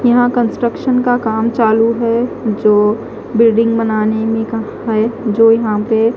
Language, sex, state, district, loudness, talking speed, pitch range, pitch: Hindi, female, Punjab, Fazilka, -14 LUFS, 145 wpm, 220-235 Hz, 225 Hz